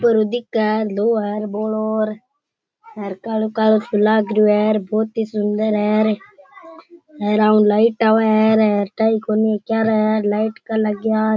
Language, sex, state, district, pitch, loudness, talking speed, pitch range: Rajasthani, male, Rajasthan, Churu, 215 Hz, -18 LUFS, 105 wpm, 215-220 Hz